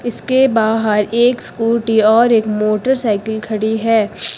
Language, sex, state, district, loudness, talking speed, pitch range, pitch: Hindi, female, Uttar Pradesh, Lucknow, -14 LUFS, 125 wpm, 215-235 Hz, 225 Hz